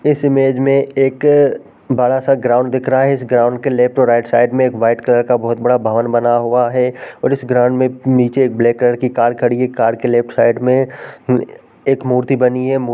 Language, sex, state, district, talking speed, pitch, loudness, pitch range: Hindi, male, Bihar, Sitamarhi, 235 wpm, 125 Hz, -14 LUFS, 120-130 Hz